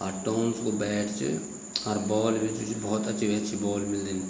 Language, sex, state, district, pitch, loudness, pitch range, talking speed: Garhwali, male, Uttarakhand, Tehri Garhwal, 105 Hz, -29 LUFS, 100-110 Hz, 195 wpm